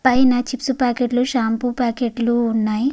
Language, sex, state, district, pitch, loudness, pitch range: Telugu, female, Andhra Pradesh, Guntur, 245 Hz, -19 LUFS, 235-255 Hz